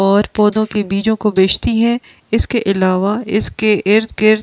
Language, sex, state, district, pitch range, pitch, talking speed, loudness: Hindi, female, Delhi, New Delhi, 200-220 Hz, 210 Hz, 160 wpm, -15 LUFS